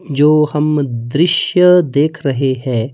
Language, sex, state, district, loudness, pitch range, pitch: Hindi, male, Himachal Pradesh, Shimla, -13 LUFS, 135-155 Hz, 150 Hz